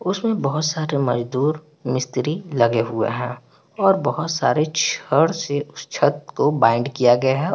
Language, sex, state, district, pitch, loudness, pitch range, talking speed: Hindi, male, Bihar, Patna, 145 Hz, -20 LUFS, 125-155 Hz, 160 wpm